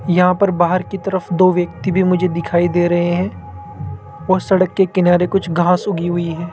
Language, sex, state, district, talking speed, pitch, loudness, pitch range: Hindi, male, Rajasthan, Jaipur, 200 wpm, 175 Hz, -16 LUFS, 170-185 Hz